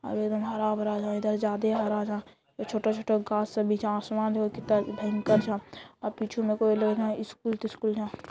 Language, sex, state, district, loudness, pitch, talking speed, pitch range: Angika, female, Bihar, Bhagalpur, -29 LUFS, 215 Hz, 195 wpm, 210-220 Hz